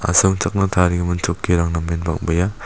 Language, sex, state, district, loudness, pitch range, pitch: Garo, male, Meghalaya, South Garo Hills, -19 LUFS, 85-90 Hz, 90 Hz